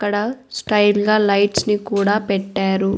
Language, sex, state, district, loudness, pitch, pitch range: Telugu, female, Andhra Pradesh, Annamaya, -18 LUFS, 205 Hz, 200-210 Hz